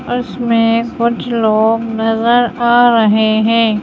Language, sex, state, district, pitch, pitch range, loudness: Hindi, female, Madhya Pradesh, Bhopal, 230 Hz, 225-240 Hz, -13 LUFS